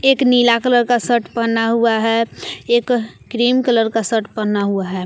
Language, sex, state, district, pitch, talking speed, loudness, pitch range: Hindi, female, Jharkhand, Palamu, 230 Hz, 190 wpm, -16 LUFS, 225-245 Hz